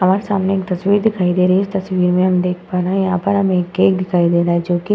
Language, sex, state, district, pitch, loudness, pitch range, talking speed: Hindi, female, Uttar Pradesh, Budaun, 185 Hz, -16 LUFS, 180-195 Hz, 325 wpm